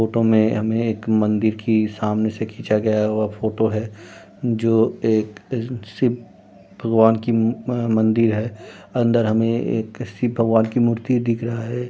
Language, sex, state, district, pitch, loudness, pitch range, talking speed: Hindi, male, Uttar Pradesh, Budaun, 110 Hz, -20 LUFS, 110-115 Hz, 150 wpm